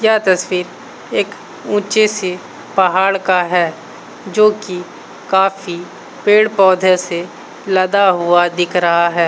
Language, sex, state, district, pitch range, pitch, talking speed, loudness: Hindi, male, Bihar, Saharsa, 175-200 Hz, 185 Hz, 115 wpm, -15 LUFS